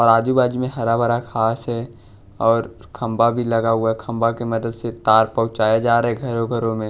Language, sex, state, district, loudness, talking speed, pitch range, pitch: Hindi, male, Bihar, West Champaran, -19 LUFS, 225 wpm, 115-120 Hz, 115 Hz